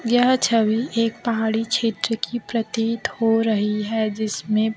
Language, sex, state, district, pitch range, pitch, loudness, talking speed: Hindi, female, Chhattisgarh, Raipur, 220-230 Hz, 225 Hz, -21 LUFS, 140 wpm